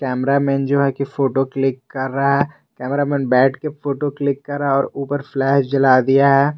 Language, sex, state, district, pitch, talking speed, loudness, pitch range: Hindi, male, Jharkhand, Garhwa, 140 Hz, 230 wpm, -18 LUFS, 135-140 Hz